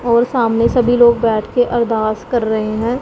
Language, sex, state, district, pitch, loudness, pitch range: Hindi, female, Punjab, Pathankot, 235 Hz, -15 LUFS, 220-240 Hz